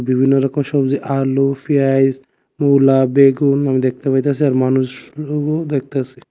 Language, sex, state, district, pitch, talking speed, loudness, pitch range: Bengali, male, Tripura, West Tripura, 135 Hz, 125 wpm, -16 LUFS, 130-140 Hz